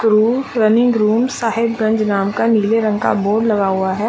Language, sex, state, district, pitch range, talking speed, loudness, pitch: Hindi, female, Jharkhand, Sahebganj, 210-230 Hz, 190 wpm, -16 LUFS, 220 Hz